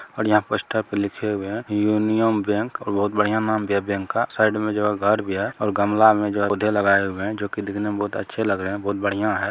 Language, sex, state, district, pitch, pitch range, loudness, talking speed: Maithili, male, Bihar, Begusarai, 105 Hz, 100-105 Hz, -22 LUFS, 275 wpm